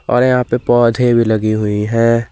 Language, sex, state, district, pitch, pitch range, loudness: Hindi, male, Jharkhand, Garhwa, 115 Hz, 110-125 Hz, -14 LUFS